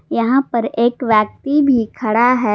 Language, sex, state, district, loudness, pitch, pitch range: Hindi, female, Jharkhand, Garhwa, -16 LUFS, 240 Hz, 225-265 Hz